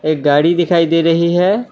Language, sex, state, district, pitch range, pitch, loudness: Hindi, male, Assam, Kamrup Metropolitan, 160-175 Hz, 170 Hz, -13 LUFS